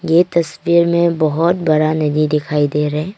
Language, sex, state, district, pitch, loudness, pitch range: Hindi, female, Arunachal Pradesh, Longding, 155 Hz, -15 LUFS, 150-170 Hz